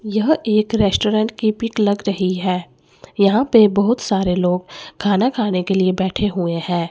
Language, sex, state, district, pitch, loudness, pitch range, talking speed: Hindi, female, Chandigarh, Chandigarh, 200 Hz, -18 LUFS, 185-220 Hz, 175 wpm